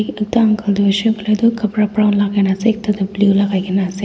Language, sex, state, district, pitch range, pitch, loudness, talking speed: Nagamese, female, Nagaland, Dimapur, 200-215 Hz, 210 Hz, -15 LUFS, 220 wpm